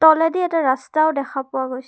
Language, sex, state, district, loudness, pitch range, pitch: Assamese, female, Assam, Kamrup Metropolitan, -19 LUFS, 260-320 Hz, 280 Hz